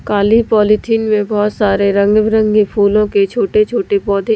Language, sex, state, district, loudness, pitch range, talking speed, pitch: Hindi, female, Delhi, New Delhi, -13 LUFS, 200-215 Hz, 165 wpm, 210 Hz